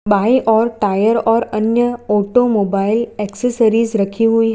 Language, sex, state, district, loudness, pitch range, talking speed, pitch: Hindi, female, Gujarat, Valsad, -15 LUFS, 210-235 Hz, 130 wpm, 225 Hz